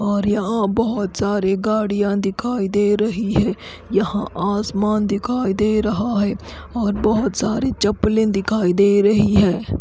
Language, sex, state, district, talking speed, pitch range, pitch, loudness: Hindi, female, Odisha, Khordha, 135 wpm, 200-215 Hz, 205 Hz, -19 LUFS